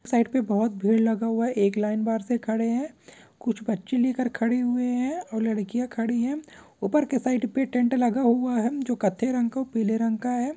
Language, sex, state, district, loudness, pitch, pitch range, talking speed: Hindi, male, Bihar, Purnia, -25 LUFS, 240 Hz, 225-250 Hz, 220 wpm